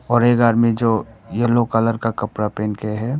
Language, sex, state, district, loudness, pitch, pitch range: Hindi, male, Arunachal Pradesh, Papum Pare, -19 LUFS, 115 Hz, 105-120 Hz